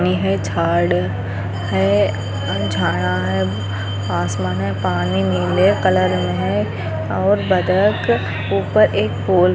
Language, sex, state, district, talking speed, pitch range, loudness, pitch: Hindi, female, Andhra Pradesh, Anantapur, 105 wpm, 90-100 Hz, -18 LUFS, 95 Hz